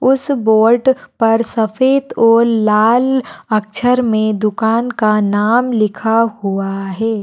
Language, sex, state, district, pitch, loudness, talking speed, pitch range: Hindi, female, Bihar, Saharsa, 225 Hz, -14 LUFS, 115 wpm, 215-245 Hz